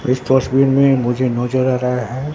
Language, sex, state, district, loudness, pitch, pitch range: Hindi, male, Bihar, Katihar, -16 LUFS, 130 Hz, 125-135 Hz